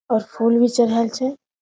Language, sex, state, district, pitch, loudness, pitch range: Maithili, female, Bihar, Samastipur, 235 Hz, -19 LUFS, 230-250 Hz